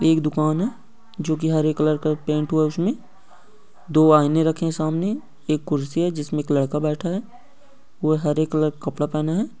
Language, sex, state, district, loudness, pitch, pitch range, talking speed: Hindi, male, Bihar, East Champaran, -22 LUFS, 155 Hz, 150-190 Hz, 220 wpm